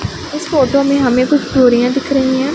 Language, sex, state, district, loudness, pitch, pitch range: Hindi, female, Punjab, Pathankot, -13 LUFS, 275 Hz, 255-280 Hz